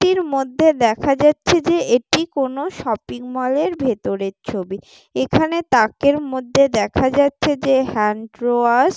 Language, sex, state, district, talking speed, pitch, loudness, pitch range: Bengali, female, West Bengal, Jalpaiguri, 135 wpm, 270 Hz, -18 LUFS, 240-295 Hz